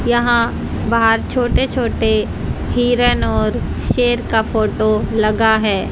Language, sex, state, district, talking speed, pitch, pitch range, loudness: Hindi, female, Haryana, Jhajjar, 110 wpm, 225 Hz, 215-240 Hz, -16 LUFS